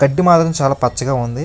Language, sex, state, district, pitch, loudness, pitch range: Telugu, male, Andhra Pradesh, Krishna, 140 Hz, -15 LUFS, 130-165 Hz